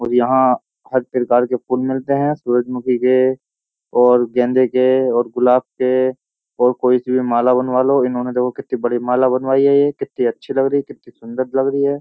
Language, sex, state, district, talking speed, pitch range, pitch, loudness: Hindi, male, Uttar Pradesh, Jyotiba Phule Nagar, 205 wpm, 125-130 Hz, 125 Hz, -17 LUFS